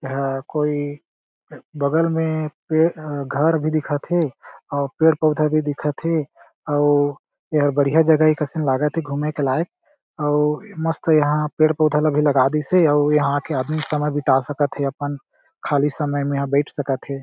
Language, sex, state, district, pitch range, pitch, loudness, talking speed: Chhattisgarhi, male, Chhattisgarh, Jashpur, 145-155 Hz, 150 Hz, -20 LUFS, 175 wpm